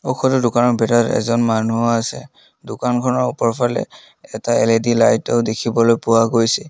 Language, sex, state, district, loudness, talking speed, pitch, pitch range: Assamese, male, Assam, Kamrup Metropolitan, -17 LUFS, 135 wpm, 115 Hz, 115-120 Hz